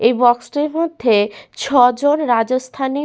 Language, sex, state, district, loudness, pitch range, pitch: Bengali, female, West Bengal, Paschim Medinipur, -16 LUFS, 240-290 Hz, 255 Hz